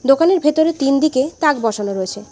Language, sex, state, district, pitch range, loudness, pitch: Bengali, female, West Bengal, Alipurduar, 225-310 Hz, -16 LUFS, 275 Hz